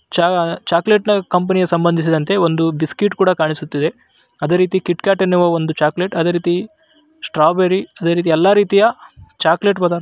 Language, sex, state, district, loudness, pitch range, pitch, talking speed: Kannada, male, Karnataka, Raichur, -16 LUFS, 165-195 Hz, 175 Hz, 170 wpm